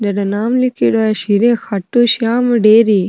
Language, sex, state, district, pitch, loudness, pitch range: Rajasthani, female, Rajasthan, Nagaur, 225 Hz, -13 LUFS, 205-240 Hz